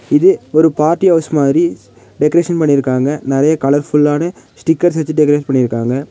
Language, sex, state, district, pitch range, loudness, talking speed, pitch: Tamil, male, Tamil Nadu, Nilgiris, 140-165 Hz, -13 LUFS, 130 wpm, 150 Hz